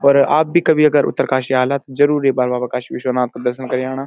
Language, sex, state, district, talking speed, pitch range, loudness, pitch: Garhwali, male, Uttarakhand, Uttarkashi, 265 wpm, 130-145 Hz, -16 LUFS, 135 Hz